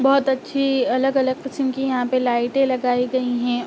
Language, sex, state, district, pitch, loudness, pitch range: Hindi, female, Uttar Pradesh, Ghazipur, 260 Hz, -20 LUFS, 250-270 Hz